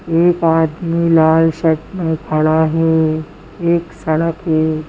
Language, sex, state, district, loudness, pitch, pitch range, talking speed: Hindi, female, Madhya Pradesh, Bhopal, -15 LUFS, 160 Hz, 160-165 Hz, 125 wpm